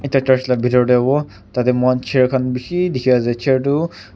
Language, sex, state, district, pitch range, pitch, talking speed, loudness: Nagamese, male, Nagaland, Kohima, 125-135 Hz, 125 Hz, 215 wpm, -17 LUFS